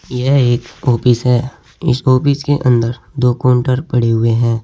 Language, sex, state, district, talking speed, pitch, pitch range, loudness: Hindi, male, Uttar Pradesh, Saharanpur, 170 wpm, 125 Hz, 120-130 Hz, -14 LUFS